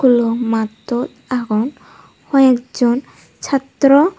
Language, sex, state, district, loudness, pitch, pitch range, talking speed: Chakma, female, Tripura, Unakoti, -17 LUFS, 250 Hz, 235-275 Hz, 115 wpm